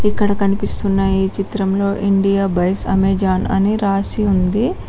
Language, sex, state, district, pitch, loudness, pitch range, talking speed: Telugu, female, Telangana, Mahabubabad, 195 Hz, -17 LUFS, 195-200 Hz, 125 wpm